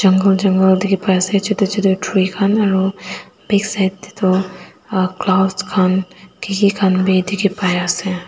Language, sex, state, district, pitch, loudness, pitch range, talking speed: Nagamese, female, Nagaland, Dimapur, 190 Hz, -16 LUFS, 185-200 Hz, 125 wpm